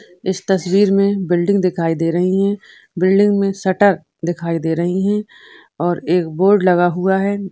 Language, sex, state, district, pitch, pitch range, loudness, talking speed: Hindi, female, Bihar, Purnia, 190 Hz, 175-195 Hz, -16 LUFS, 165 wpm